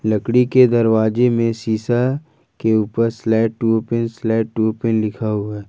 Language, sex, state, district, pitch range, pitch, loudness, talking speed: Hindi, male, Jharkhand, Ranchi, 110-115 Hz, 115 Hz, -18 LUFS, 170 wpm